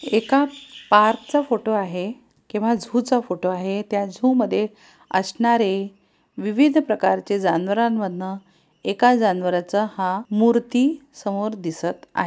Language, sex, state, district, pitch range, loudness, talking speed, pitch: Marathi, female, Maharashtra, Pune, 190-235 Hz, -21 LUFS, 120 wpm, 210 Hz